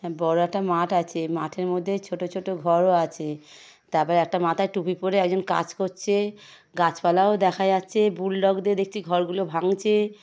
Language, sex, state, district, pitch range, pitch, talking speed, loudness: Bengali, male, West Bengal, Paschim Medinipur, 170-195 Hz, 185 Hz, 160 wpm, -24 LUFS